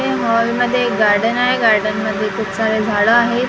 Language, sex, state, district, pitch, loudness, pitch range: Marathi, female, Maharashtra, Gondia, 225 Hz, -15 LUFS, 215-240 Hz